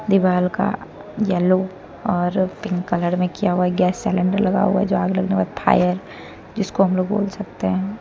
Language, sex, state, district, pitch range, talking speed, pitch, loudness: Hindi, female, Jharkhand, Deoghar, 180-200 Hz, 195 wpm, 185 Hz, -20 LUFS